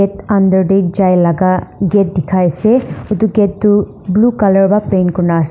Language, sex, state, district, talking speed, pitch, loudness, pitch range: Nagamese, female, Nagaland, Dimapur, 165 wpm, 195 Hz, -12 LUFS, 185-205 Hz